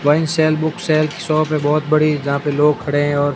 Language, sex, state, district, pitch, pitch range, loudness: Hindi, male, Rajasthan, Barmer, 155 Hz, 145-155 Hz, -17 LUFS